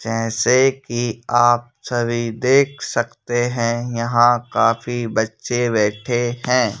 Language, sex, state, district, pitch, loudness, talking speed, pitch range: Hindi, male, Madhya Pradesh, Bhopal, 120 Hz, -19 LUFS, 105 wpm, 115-120 Hz